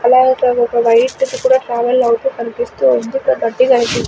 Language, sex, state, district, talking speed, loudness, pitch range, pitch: Telugu, female, Andhra Pradesh, Sri Satya Sai, 175 wpm, -14 LUFS, 235-270 Hz, 255 Hz